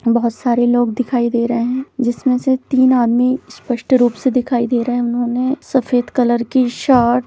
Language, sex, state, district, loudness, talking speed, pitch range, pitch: Hindi, female, Chhattisgarh, Bilaspur, -16 LUFS, 190 wpm, 240-255 Hz, 245 Hz